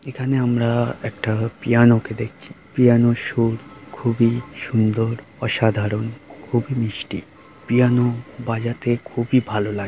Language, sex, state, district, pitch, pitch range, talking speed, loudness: Bengali, male, West Bengal, Jhargram, 120 Hz, 115-125 Hz, 105 wpm, -20 LUFS